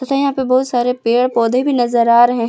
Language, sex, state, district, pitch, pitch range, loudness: Hindi, female, Jharkhand, Palamu, 250 Hz, 235-260 Hz, -15 LUFS